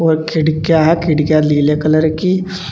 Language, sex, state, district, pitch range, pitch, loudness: Hindi, male, Uttar Pradesh, Saharanpur, 155-165 Hz, 155 Hz, -14 LUFS